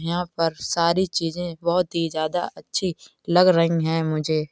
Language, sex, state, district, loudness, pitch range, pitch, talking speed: Hindi, female, Bihar, East Champaran, -22 LUFS, 160-175 Hz, 170 Hz, 170 wpm